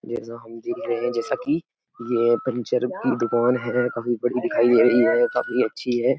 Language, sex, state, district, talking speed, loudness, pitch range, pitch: Hindi, male, Uttar Pradesh, Etah, 215 wpm, -22 LUFS, 120-125 Hz, 120 Hz